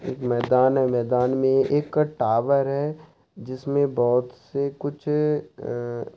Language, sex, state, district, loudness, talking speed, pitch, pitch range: Hindi, male, Bihar, Saharsa, -23 LUFS, 125 wpm, 135 Hz, 125-145 Hz